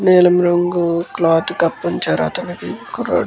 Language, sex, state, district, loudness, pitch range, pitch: Telugu, male, Andhra Pradesh, Guntur, -16 LUFS, 165-175 Hz, 170 Hz